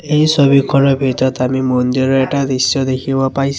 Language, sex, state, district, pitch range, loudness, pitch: Assamese, male, Assam, Sonitpur, 130-140 Hz, -14 LUFS, 135 Hz